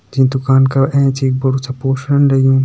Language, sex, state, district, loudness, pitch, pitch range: Hindi, male, Uttarakhand, Tehri Garhwal, -14 LUFS, 135 Hz, 130-135 Hz